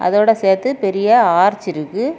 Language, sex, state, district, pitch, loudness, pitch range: Tamil, female, Tamil Nadu, Kanyakumari, 205 Hz, -15 LUFS, 190-235 Hz